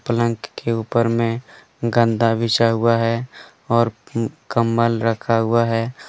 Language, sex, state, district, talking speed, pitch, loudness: Hindi, male, Jharkhand, Deoghar, 130 wpm, 115 Hz, -19 LUFS